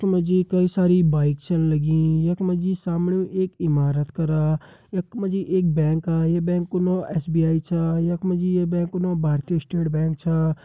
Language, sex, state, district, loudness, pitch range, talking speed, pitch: Hindi, male, Uttarakhand, Uttarkashi, -22 LUFS, 160-180 Hz, 220 wpm, 170 Hz